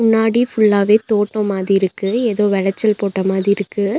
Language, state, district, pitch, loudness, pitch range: Tamil, Tamil Nadu, Nilgiris, 205 Hz, -16 LUFS, 195-220 Hz